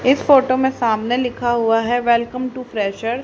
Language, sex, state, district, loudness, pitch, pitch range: Hindi, male, Haryana, Rohtak, -18 LUFS, 245 Hz, 230-255 Hz